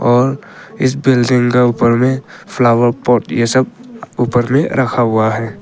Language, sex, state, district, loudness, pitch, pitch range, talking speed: Hindi, male, Arunachal Pradesh, Papum Pare, -14 LUFS, 125 Hz, 120-135 Hz, 160 wpm